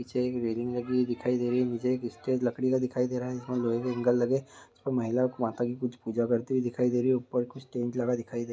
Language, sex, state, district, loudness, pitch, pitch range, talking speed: Hindi, male, Uttar Pradesh, Hamirpur, -30 LUFS, 125 Hz, 120-125 Hz, 300 wpm